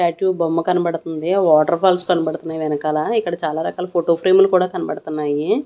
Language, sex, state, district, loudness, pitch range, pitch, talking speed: Telugu, female, Andhra Pradesh, Annamaya, -18 LUFS, 160-180 Hz, 170 Hz, 150 wpm